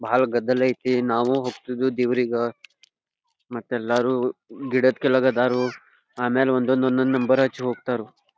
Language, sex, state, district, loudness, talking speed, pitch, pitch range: Kannada, male, Karnataka, Belgaum, -22 LUFS, 130 wpm, 125 Hz, 125-130 Hz